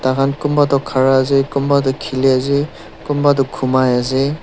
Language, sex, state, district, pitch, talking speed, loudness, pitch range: Nagamese, male, Nagaland, Dimapur, 135 Hz, 175 wpm, -15 LUFS, 130-140 Hz